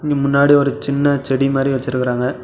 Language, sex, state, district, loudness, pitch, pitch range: Tamil, male, Tamil Nadu, Namakkal, -16 LUFS, 140 Hz, 135-140 Hz